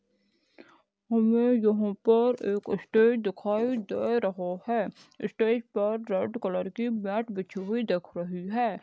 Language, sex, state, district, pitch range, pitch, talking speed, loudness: Hindi, male, Maharashtra, Chandrapur, 195-235 Hz, 215 Hz, 135 wpm, -28 LUFS